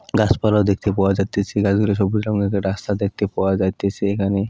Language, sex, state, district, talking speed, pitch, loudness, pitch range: Bengali, male, West Bengal, Purulia, 160 wpm, 100 Hz, -20 LUFS, 100-105 Hz